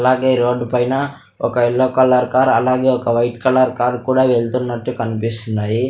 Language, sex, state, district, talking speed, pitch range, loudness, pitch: Telugu, male, Andhra Pradesh, Sri Satya Sai, 150 wpm, 120-130 Hz, -16 LUFS, 125 Hz